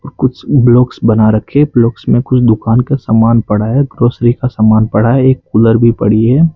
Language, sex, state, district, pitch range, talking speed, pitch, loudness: Hindi, male, Rajasthan, Bikaner, 110-130 Hz, 200 wpm, 120 Hz, -10 LUFS